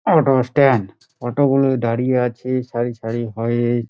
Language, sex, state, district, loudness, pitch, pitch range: Bengali, male, West Bengal, Dakshin Dinajpur, -18 LUFS, 125 Hz, 120-135 Hz